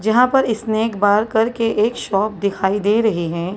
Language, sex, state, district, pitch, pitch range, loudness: Hindi, female, Maharashtra, Mumbai Suburban, 215 Hz, 200-225 Hz, -18 LUFS